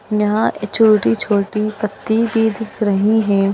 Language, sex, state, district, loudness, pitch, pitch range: Hindi, female, Bihar, Kishanganj, -16 LUFS, 210 Hz, 205-220 Hz